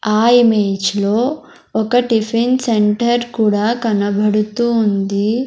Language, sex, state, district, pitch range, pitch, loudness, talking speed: Telugu, male, Andhra Pradesh, Sri Satya Sai, 210-235 Hz, 220 Hz, -15 LUFS, 100 wpm